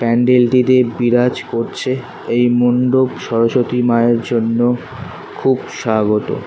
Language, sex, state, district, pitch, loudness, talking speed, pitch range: Bengali, male, West Bengal, Kolkata, 120 Hz, -15 LUFS, 100 wpm, 115-125 Hz